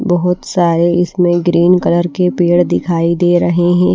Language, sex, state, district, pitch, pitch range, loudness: Hindi, female, Bihar, Patna, 175 Hz, 175-180 Hz, -12 LUFS